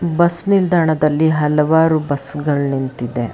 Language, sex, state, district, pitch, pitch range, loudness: Kannada, female, Karnataka, Bangalore, 150 Hz, 140-160 Hz, -16 LUFS